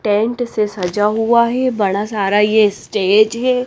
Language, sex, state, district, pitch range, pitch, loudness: Hindi, female, Haryana, Rohtak, 205-235 Hz, 215 Hz, -15 LUFS